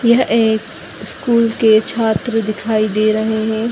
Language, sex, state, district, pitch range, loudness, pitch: Kumaoni, female, Uttarakhand, Tehri Garhwal, 220-230 Hz, -15 LUFS, 220 Hz